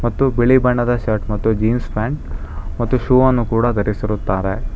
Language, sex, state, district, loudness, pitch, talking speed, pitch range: Kannada, male, Karnataka, Bangalore, -17 LUFS, 110 Hz, 150 wpm, 105-120 Hz